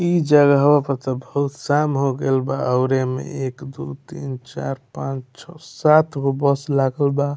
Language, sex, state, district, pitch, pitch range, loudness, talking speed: Bhojpuri, male, Bihar, Muzaffarpur, 140 Hz, 130-145 Hz, -20 LUFS, 195 wpm